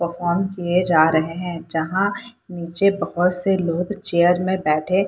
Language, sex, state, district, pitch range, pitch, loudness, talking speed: Hindi, female, Bihar, Purnia, 170-190 Hz, 180 Hz, -19 LUFS, 165 wpm